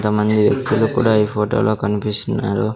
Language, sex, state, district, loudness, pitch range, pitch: Telugu, male, Andhra Pradesh, Sri Satya Sai, -17 LUFS, 105-110 Hz, 105 Hz